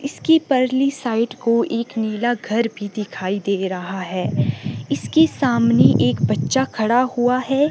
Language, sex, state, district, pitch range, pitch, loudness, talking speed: Hindi, female, Himachal Pradesh, Shimla, 200-255 Hz, 230 Hz, -19 LUFS, 150 wpm